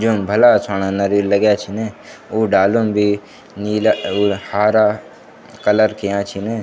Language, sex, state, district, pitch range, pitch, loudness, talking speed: Garhwali, male, Uttarakhand, Tehri Garhwal, 100-110 Hz, 105 Hz, -16 LUFS, 145 wpm